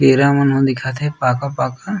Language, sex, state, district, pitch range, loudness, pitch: Chhattisgarhi, male, Chhattisgarh, Raigarh, 130-140 Hz, -17 LUFS, 135 Hz